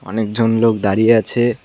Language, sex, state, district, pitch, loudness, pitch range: Bengali, male, West Bengal, Cooch Behar, 115 Hz, -15 LUFS, 105-115 Hz